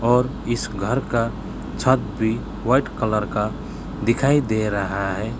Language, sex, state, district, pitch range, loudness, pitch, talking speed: Hindi, male, West Bengal, Alipurduar, 105-120 Hz, -22 LUFS, 110 Hz, 145 wpm